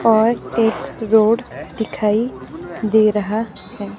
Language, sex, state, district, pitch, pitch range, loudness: Hindi, female, Himachal Pradesh, Shimla, 220 Hz, 210-225 Hz, -18 LUFS